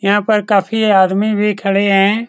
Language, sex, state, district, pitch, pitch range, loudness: Hindi, male, Bihar, Saran, 205 Hz, 195-215 Hz, -13 LUFS